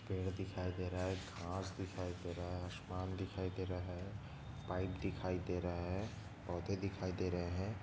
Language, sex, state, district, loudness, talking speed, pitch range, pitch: Hindi, male, Maharashtra, Nagpur, -43 LUFS, 190 wpm, 90-95 Hz, 95 Hz